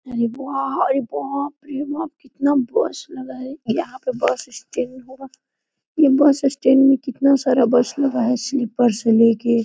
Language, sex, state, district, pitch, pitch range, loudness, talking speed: Hindi, female, Jharkhand, Sahebganj, 265 Hz, 245-275 Hz, -19 LUFS, 175 wpm